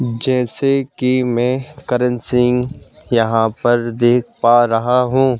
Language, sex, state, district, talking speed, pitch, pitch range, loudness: Hindi, male, Madhya Pradesh, Bhopal, 120 wpm, 125 Hz, 120-130 Hz, -16 LUFS